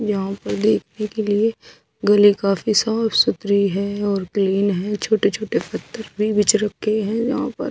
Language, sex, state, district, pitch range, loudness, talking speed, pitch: Hindi, female, Odisha, Sambalpur, 200-215 Hz, -19 LUFS, 170 wpm, 205 Hz